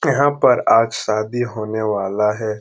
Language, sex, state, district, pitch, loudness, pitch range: Hindi, male, Bihar, Lakhisarai, 110 Hz, -18 LUFS, 105-120 Hz